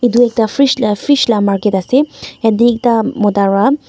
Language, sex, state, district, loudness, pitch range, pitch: Nagamese, female, Nagaland, Dimapur, -13 LUFS, 205-260 Hz, 230 Hz